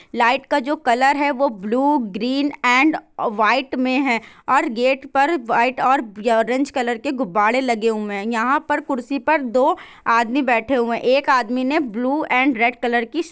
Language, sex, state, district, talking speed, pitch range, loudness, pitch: Hindi, female, Bihar, Saran, 185 wpm, 235-285 Hz, -19 LUFS, 260 Hz